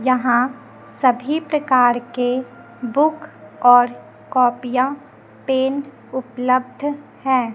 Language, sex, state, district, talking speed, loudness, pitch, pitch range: Hindi, female, Chhattisgarh, Raipur, 80 wpm, -19 LUFS, 255 Hz, 245-275 Hz